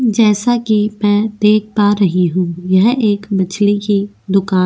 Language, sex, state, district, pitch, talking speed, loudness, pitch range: Hindi, female, Goa, North and South Goa, 205 Hz, 165 wpm, -14 LUFS, 195-215 Hz